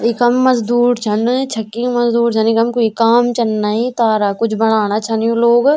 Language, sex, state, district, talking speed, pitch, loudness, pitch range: Garhwali, female, Uttarakhand, Tehri Garhwal, 165 wpm, 230 Hz, -14 LUFS, 220-240 Hz